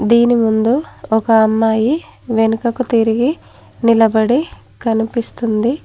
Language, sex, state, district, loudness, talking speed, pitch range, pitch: Telugu, female, Telangana, Mahabubabad, -15 LUFS, 80 wpm, 225-245 Hz, 230 Hz